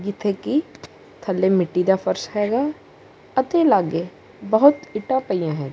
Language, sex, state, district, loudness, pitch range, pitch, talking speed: Punjabi, male, Punjab, Kapurthala, -20 LUFS, 185-265 Hz, 205 Hz, 135 wpm